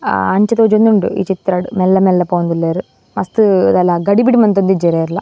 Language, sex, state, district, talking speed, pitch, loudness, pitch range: Tulu, female, Karnataka, Dakshina Kannada, 150 wpm, 190 Hz, -13 LUFS, 175-210 Hz